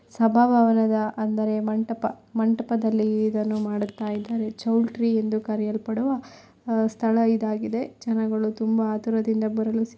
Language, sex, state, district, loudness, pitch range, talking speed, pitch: Kannada, female, Karnataka, Shimoga, -24 LUFS, 215-230 Hz, 95 wpm, 220 Hz